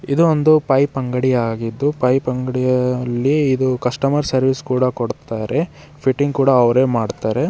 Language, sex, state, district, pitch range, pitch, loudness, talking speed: Kannada, male, Karnataka, Bidar, 125-140 Hz, 130 Hz, -17 LUFS, 120 wpm